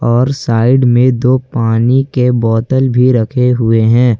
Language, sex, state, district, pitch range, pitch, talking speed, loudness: Hindi, male, Jharkhand, Ranchi, 115-130 Hz, 125 Hz, 155 wpm, -11 LUFS